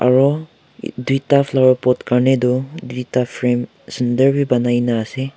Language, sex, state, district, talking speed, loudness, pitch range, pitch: Nagamese, male, Nagaland, Kohima, 100 wpm, -17 LUFS, 125-135 Hz, 125 Hz